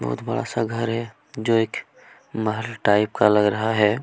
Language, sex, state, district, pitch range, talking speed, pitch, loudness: Hindi, male, Chhattisgarh, Kabirdham, 105-115 Hz, 195 wpm, 110 Hz, -22 LUFS